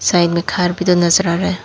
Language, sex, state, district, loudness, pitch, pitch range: Hindi, female, Tripura, Dhalai, -15 LUFS, 180 Hz, 170-185 Hz